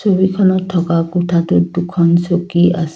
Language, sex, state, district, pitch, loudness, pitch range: Assamese, female, Assam, Kamrup Metropolitan, 175 Hz, -14 LUFS, 170-185 Hz